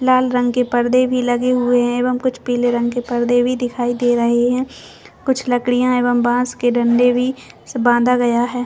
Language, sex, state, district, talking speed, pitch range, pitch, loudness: Hindi, female, Chhattisgarh, Bastar, 195 wpm, 245-250 Hz, 245 Hz, -17 LUFS